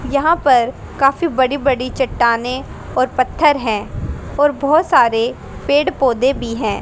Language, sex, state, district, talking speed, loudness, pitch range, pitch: Hindi, female, Haryana, Rohtak, 140 wpm, -16 LUFS, 245-290 Hz, 265 Hz